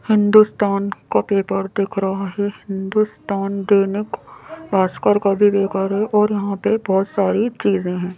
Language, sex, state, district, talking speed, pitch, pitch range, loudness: Hindi, female, Madhya Pradesh, Bhopal, 145 wpm, 200 Hz, 195-210 Hz, -18 LUFS